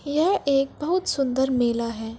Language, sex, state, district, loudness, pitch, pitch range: Hindi, female, Uttar Pradesh, Varanasi, -23 LUFS, 270 Hz, 240-300 Hz